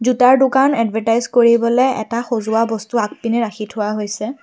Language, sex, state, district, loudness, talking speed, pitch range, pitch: Assamese, female, Assam, Kamrup Metropolitan, -16 LUFS, 150 wpm, 220-250 Hz, 230 Hz